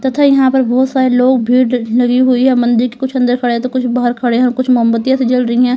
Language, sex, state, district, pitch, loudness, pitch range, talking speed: Hindi, female, Uttar Pradesh, Lalitpur, 250 Hz, -12 LUFS, 245-260 Hz, 270 wpm